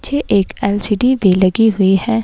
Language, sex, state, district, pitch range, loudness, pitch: Hindi, female, Himachal Pradesh, Shimla, 195-230 Hz, -14 LUFS, 205 Hz